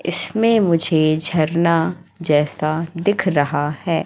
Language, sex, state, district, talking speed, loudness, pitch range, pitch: Hindi, female, Madhya Pradesh, Katni, 105 wpm, -18 LUFS, 155-175 Hz, 165 Hz